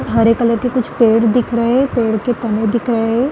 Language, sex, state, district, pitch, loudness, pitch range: Hindi, female, Chhattisgarh, Bastar, 235 Hz, -15 LUFS, 225-245 Hz